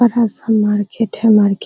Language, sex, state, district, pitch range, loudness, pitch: Hindi, female, Bihar, Araria, 210-230 Hz, -15 LUFS, 220 Hz